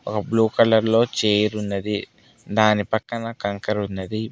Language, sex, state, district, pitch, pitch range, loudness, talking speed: Telugu, male, Telangana, Mahabubabad, 105 Hz, 105-110 Hz, -21 LUFS, 125 wpm